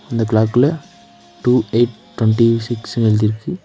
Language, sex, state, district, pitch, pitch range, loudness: Tamil, male, Tamil Nadu, Nilgiris, 115 Hz, 110-120 Hz, -16 LUFS